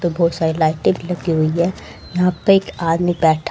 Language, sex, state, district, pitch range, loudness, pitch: Hindi, female, Haryana, Charkhi Dadri, 160-175 Hz, -18 LUFS, 170 Hz